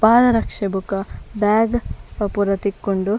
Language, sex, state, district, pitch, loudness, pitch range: Tulu, female, Karnataka, Dakshina Kannada, 205 Hz, -20 LUFS, 195-225 Hz